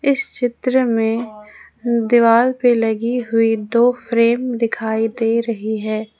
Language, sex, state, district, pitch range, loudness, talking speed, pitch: Hindi, female, Jharkhand, Ranchi, 225-245 Hz, -17 LUFS, 125 wpm, 230 Hz